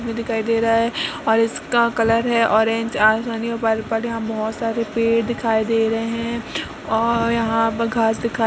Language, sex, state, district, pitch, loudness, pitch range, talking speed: Hindi, female, Uttar Pradesh, Jalaun, 230 Hz, -20 LUFS, 225-230 Hz, 185 wpm